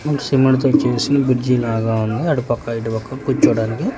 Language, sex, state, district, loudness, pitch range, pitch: Telugu, male, Telangana, Hyderabad, -17 LUFS, 115-140 Hz, 130 Hz